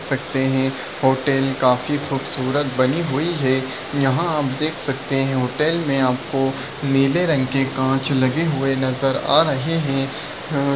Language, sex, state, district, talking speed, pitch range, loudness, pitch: Hindi, male, Maharashtra, Solapur, 155 wpm, 130-145 Hz, -20 LUFS, 135 Hz